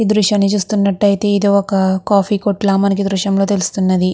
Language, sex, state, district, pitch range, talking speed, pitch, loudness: Telugu, female, Andhra Pradesh, Guntur, 195-205 Hz, 190 wpm, 200 Hz, -15 LUFS